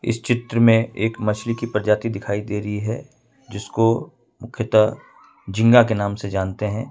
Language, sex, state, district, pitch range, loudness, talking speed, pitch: Hindi, male, Jharkhand, Ranchi, 105-115 Hz, -20 LUFS, 165 wpm, 110 Hz